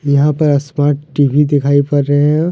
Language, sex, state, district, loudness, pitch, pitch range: Hindi, male, Jharkhand, Deoghar, -13 LUFS, 145 Hz, 140-150 Hz